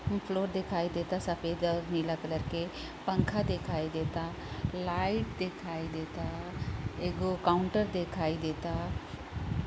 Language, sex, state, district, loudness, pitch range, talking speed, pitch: Bhojpuri, female, Uttar Pradesh, Gorakhpur, -34 LUFS, 160-180 Hz, 110 wpm, 170 Hz